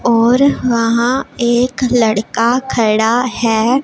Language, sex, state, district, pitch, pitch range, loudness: Hindi, female, Punjab, Pathankot, 240 Hz, 230-250 Hz, -14 LUFS